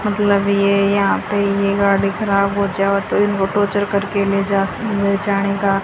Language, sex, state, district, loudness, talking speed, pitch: Hindi, female, Haryana, Charkhi Dadri, -17 LUFS, 195 wpm, 200 Hz